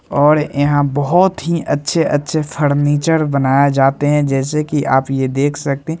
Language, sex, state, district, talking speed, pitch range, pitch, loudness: Hindi, male, Bihar, Begusarai, 170 wpm, 140-155 Hz, 145 Hz, -15 LUFS